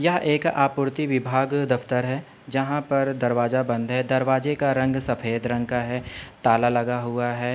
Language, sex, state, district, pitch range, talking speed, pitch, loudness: Hindi, male, Uttar Pradesh, Budaun, 120-140 Hz, 175 wpm, 130 Hz, -23 LUFS